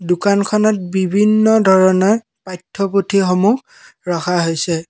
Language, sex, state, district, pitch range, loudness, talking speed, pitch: Assamese, male, Assam, Kamrup Metropolitan, 180-205 Hz, -15 LUFS, 85 wpm, 190 Hz